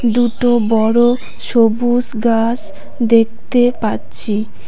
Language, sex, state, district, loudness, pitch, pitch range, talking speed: Bengali, female, West Bengal, Cooch Behar, -15 LUFS, 235 Hz, 225-245 Hz, 75 wpm